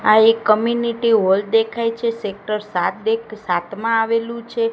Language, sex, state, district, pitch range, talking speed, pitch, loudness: Gujarati, female, Gujarat, Gandhinagar, 210-230 Hz, 150 wpm, 225 Hz, -19 LUFS